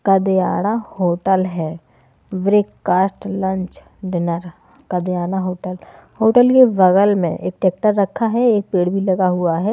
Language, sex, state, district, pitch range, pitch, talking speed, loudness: Hindi, female, Haryana, Jhajjar, 180-205 Hz, 190 Hz, 135 wpm, -17 LUFS